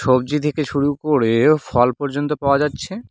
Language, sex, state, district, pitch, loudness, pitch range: Bengali, male, West Bengal, Cooch Behar, 145 Hz, -18 LUFS, 130-150 Hz